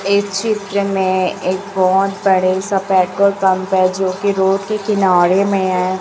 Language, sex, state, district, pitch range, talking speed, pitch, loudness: Hindi, male, Chhattisgarh, Raipur, 185-200 Hz, 170 wpm, 190 Hz, -15 LUFS